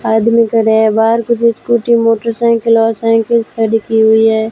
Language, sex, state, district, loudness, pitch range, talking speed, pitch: Hindi, female, Rajasthan, Bikaner, -11 LUFS, 225-230 Hz, 170 wpm, 225 Hz